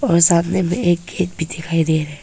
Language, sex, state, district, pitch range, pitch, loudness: Hindi, female, Arunachal Pradesh, Papum Pare, 160-180 Hz, 170 Hz, -17 LUFS